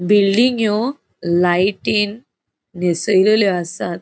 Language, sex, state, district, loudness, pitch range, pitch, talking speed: Konkani, female, Goa, North and South Goa, -17 LUFS, 175-215 Hz, 200 Hz, 60 wpm